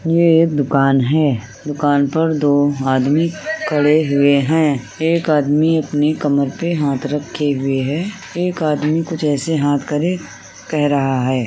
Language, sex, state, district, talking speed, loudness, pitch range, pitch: Hindi, female, Uttar Pradesh, Etah, 150 wpm, -17 LUFS, 140-160 Hz, 150 Hz